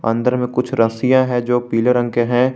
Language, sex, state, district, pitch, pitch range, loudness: Hindi, male, Jharkhand, Garhwa, 125 Hz, 120-125 Hz, -17 LUFS